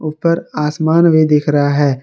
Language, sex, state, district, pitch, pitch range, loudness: Hindi, male, Jharkhand, Garhwa, 150 Hz, 145-160 Hz, -13 LUFS